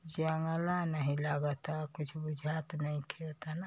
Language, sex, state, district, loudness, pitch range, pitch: Bhojpuri, male, Uttar Pradesh, Ghazipur, -36 LUFS, 150-160 Hz, 155 Hz